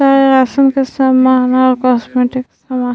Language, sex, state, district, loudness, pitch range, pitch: Hindi, female, Uttar Pradesh, Varanasi, -12 LUFS, 255-270 Hz, 260 Hz